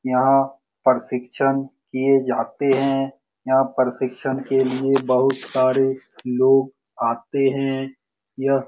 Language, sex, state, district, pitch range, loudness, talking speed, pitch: Hindi, male, Bihar, Lakhisarai, 130-135 Hz, -21 LUFS, 110 wpm, 135 Hz